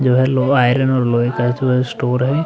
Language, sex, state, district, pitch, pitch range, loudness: Hindi, male, Uttar Pradesh, Budaun, 125 Hz, 125-130 Hz, -16 LUFS